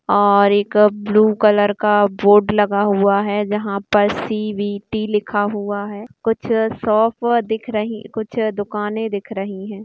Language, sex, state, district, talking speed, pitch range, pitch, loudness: Hindi, female, Bihar, East Champaran, 150 wpm, 205-215 Hz, 210 Hz, -17 LUFS